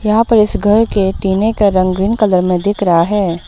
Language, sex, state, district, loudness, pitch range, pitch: Hindi, female, Arunachal Pradesh, Lower Dibang Valley, -13 LUFS, 185-215 Hz, 200 Hz